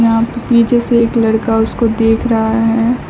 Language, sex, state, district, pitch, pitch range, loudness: Hindi, female, West Bengal, Alipurduar, 230 Hz, 225-235 Hz, -13 LUFS